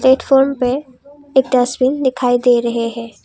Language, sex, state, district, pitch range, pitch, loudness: Hindi, female, Assam, Kamrup Metropolitan, 245-270 Hz, 255 Hz, -15 LUFS